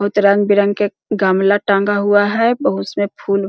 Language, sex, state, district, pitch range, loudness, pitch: Hindi, female, Bihar, Jahanabad, 200-205 Hz, -15 LUFS, 205 Hz